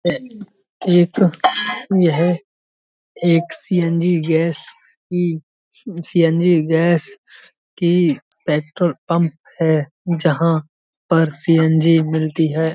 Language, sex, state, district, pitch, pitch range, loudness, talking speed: Hindi, male, Uttar Pradesh, Budaun, 170 Hz, 160-180 Hz, -17 LUFS, 75 wpm